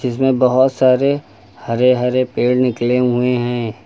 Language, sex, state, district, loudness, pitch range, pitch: Hindi, male, Uttar Pradesh, Lucknow, -16 LUFS, 120-130 Hz, 125 Hz